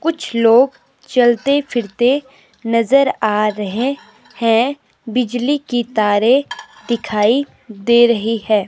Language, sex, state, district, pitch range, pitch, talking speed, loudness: Hindi, female, Himachal Pradesh, Shimla, 225-265 Hz, 240 Hz, 105 wpm, -16 LUFS